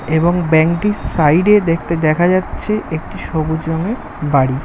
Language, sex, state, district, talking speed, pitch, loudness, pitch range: Bengali, male, West Bengal, Kolkata, 155 wpm, 165 Hz, -15 LUFS, 155-180 Hz